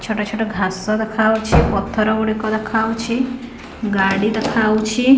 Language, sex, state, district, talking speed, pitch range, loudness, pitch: Odia, female, Odisha, Khordha, 115 wpm, 215-225 Hz, -18 LUFS, 220 Hz